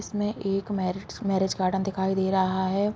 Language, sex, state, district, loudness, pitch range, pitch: Hindi, female, Bihar, Vaishali, -27 LUFS, 190-200 Hz, 195 Hz